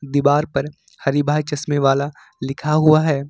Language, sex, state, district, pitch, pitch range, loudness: Hindi, male, Jharkhand, Ranchi, 145 Hz, 140-150 Hz, -19 LUFS